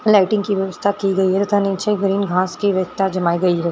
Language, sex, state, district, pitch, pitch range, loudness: Hindi, female, Rajasthan, Churu, 195 Hz, 185-200 Hz, -18 LUFS